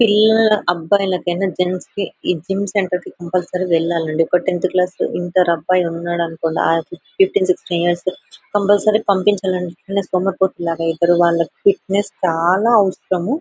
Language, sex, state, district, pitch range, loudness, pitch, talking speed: Telugu, female, Telangana, Nalgonda, 175-200 Hz, -17 LUFS, 185 Hz, 130 wpm